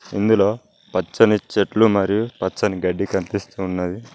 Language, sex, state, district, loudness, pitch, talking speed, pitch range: Telugu, male, Telangana, Mahabubabad, -20 LUFS, 100 Hz, 115 wpm, 95-110 Hz